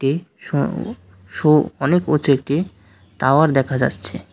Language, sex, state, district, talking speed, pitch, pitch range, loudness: Bengali, male, Tripura, West Tripura, 110 wpm, 135 Hz, 105-150 Hz, -19 LUFS